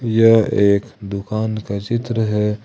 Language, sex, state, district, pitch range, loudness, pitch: Hindi, male, Jharkhand, Ranchi, 100-115 Hz, -18 LUFS, 110 Hz